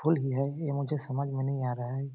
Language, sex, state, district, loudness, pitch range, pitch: Hindi, male, Chhattisgarh, Balrampur, -32 LUFS, 135-145 Hz, 135 Hz